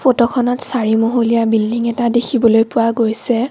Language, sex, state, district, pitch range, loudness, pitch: Assamese, female, Assam, Kamrup Metropolitan, 230-245 Hz, -15 LUFS, 235 Hz